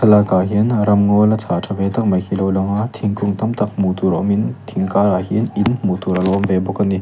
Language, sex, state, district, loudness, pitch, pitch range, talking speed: Mizo, male, Mizoram, Aizawl, -17 LUFS, 100 Hz, 95-105 Hz, 280 wpm